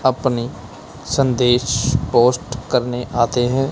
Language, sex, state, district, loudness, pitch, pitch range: Hindi, male, Punjab, Kapurthala, -18 LUFS, 125 Hz, 120-130 Hz